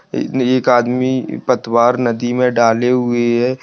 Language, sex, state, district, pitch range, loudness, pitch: Hindi, male, Rajasthan, Churu, 120-125 Hz, -15 LUFS, 125 Hz